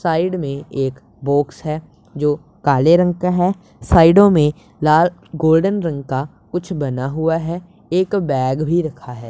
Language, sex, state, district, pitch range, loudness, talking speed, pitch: Hindi, male, Punjab, Pathankot, 140-175 Hz, -17 LUFS, 160 wpm, 160 Hz